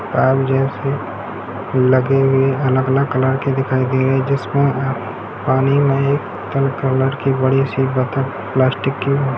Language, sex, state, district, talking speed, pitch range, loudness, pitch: Hindi, male, Bihar, Gaya, 160 wpm, 130-135 Hz, -17 LUFS, 135 Hz